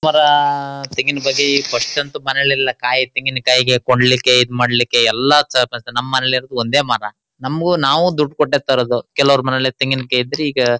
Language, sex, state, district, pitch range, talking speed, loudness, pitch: Kannada, male, Karnataka, Shimoga, 125-145 Hz, 140 wpm, -15 LUFS, 130 Hz